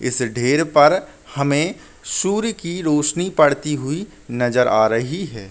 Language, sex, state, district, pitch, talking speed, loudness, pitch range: Hindi, male, Uttar Pradesh, Muzaffarnagar, 150 Hz, 140 wpm, -19 LUFS, 125-170 Hz